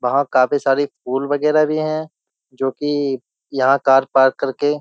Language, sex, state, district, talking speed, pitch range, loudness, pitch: Hindi, male, Uttar Pradesh, Jyotiba Phule Nagar, 175 wpm, 135-145 Hz, -18 LUFS, 140 Hz